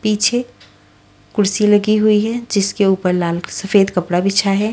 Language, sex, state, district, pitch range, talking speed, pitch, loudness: Hindi, female, Haryana, Rohtak, 180-210 Hz, 150 wpm, 195 Hz, -16 LUFS